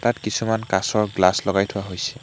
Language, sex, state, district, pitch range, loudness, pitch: Assamese, male, Assam, Hailakandi, 95-110 Hz, -21 LUFS, 105 Hz